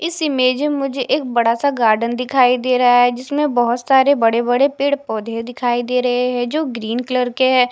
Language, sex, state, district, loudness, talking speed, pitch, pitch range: Hindi, female, Punjab, Fazilka, -17 LUFS, 215 wpm, 250 Hz, 245-275 Hz